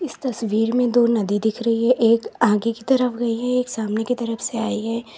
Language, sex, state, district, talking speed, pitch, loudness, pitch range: Hindi, female, Uttar Pradesh, Lalitpur, 245 wpm, 230 Hz, -20 LUFS, 225-245 Hz